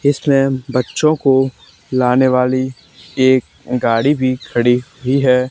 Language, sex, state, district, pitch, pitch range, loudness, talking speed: Hindi, male, Haryana, Charkhi Dadri, 130 Hz, 125-135 Hz, -15 LUFS, 120 wpm